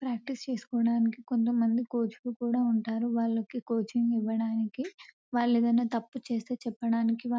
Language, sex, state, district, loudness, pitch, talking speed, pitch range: Telugu, female, Telangana, Nalgonda, -30 LUFS, 235 Hz, 130 wpm, 230-245 Hz